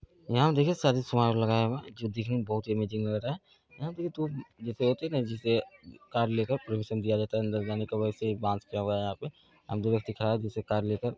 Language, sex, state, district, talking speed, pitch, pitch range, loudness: Bhojpuri, male, Bihar, Saran, 270 wpm, 115 Hz, 110-125 Hz, -31 LUFS